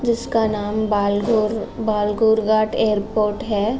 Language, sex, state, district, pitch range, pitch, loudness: Hindi, female, Uttar Pradesh, Jalaun, 210-220 Hz, 215 Hz, -20 LUFS